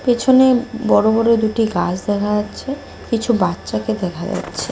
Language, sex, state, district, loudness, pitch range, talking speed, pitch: Bengali, female, West Bengal, Cooch Behar, -17 LUFS, 195-240 Hz, 140 wpm, 220 Hz